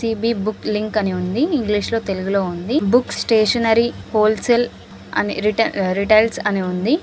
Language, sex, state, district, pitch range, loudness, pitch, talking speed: Telugu, female, Andhra Pradesh, Srikakulam, 200-230 Hz, -18 LUFS, 215 Hz, 135 wpm